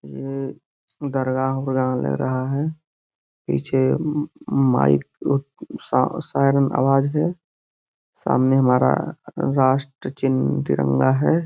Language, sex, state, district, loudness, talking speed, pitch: Hindi, male, Uttar Pradesh, Gorakhpur, -21 LUFS, 95 wpm, 130 Hz